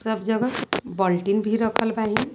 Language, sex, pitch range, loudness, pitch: Sadri, female, 215-230 Hz, -23 LUFS, 220 Hz